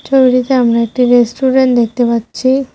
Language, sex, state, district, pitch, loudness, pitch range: Bengali, female, West Bengal, Cooch Behar, 250 Hz, -12 LUFS, 235-260 Hz